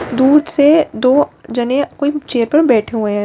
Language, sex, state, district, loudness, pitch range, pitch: Hindi, female, Bihar, Katihar, -14 LUFS, 240-295 Hz, 265 Hz